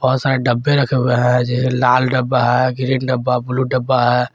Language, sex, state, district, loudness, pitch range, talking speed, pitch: Hindi, male, Jharkhand, Garhwa, -16 LUFS, 125-130 Hz, 205 wpm, 130 Hz